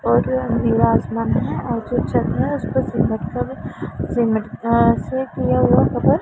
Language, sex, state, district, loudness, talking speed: Hindi, female, Punjab, Pathankot, -19 LUFS, 135 wpm